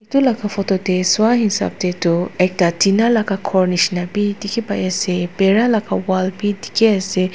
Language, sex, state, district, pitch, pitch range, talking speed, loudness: Nagamese, female, Nagaland, Dimapur, 195 Hz, 185-210 Hz, 190 wpm, -17 LUFS